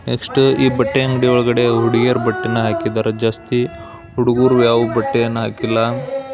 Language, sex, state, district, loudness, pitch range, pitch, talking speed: Kannada, male, Karnataka, Belgaum, -16 LUFS, 115-125 Hz, 120 Hz, 135 wpm